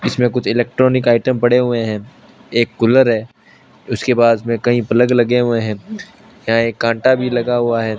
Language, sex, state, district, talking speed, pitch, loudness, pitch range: Hindi, male, Rajasthan, Bikaner, 190 wpm, 120 Hz, -15 LUFS, 115-125 Hz